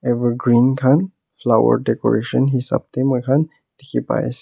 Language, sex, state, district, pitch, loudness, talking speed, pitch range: Nagamese, male, Nagaland, Kohima, 130 Hz, -18 LUFS, 135 wpm, 125-135 Hz